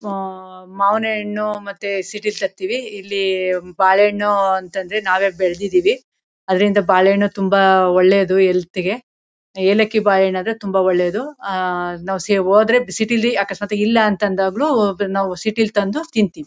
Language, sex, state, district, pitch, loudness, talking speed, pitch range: Kannada, female, Karnataka, Mysore, 195 Hz, -17 LUFS, 110 wpm, 190-210 Hz